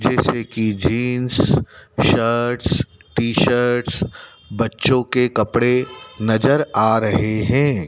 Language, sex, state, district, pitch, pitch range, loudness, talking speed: Hindi, male, Madhya Pradesh, Dhar, 120 Hz, 110-125 Hz, -18 LUFS, 100 wpm